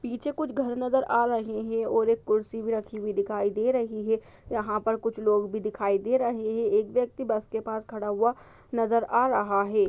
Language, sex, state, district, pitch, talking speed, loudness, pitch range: Hindi, female, Uttar Pradesh, Budaun, 225 Hz, 225 wpm, -27 LUFS, 215-240 Hz